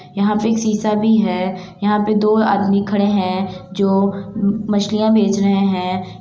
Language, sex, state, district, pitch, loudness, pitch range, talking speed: Hindi, female, Uttar Pradesh, Deoria, 200 Hz, -17 LUFS, 190-215 Hz, 175 wpm